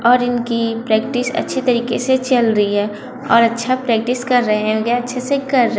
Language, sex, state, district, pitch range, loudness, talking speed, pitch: Hindi, female, Chhattisgarh, Raipur, 225-255 Hz, -17 LUFS, 195 wpm, 240 Hz